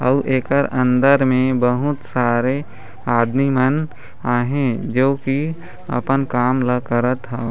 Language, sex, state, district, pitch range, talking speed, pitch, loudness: Chhattisgarhi, male, Chhattisgarh, Raigarh, 125-135 Hz, 135 wpm, 130 Hz, -18 LUFS